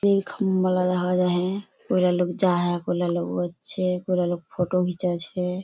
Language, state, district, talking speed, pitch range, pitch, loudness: Surjapuri, Bihar, Kishanganj, 170 wpm, 175-185 Hz, 180 Hz, -24 LUFS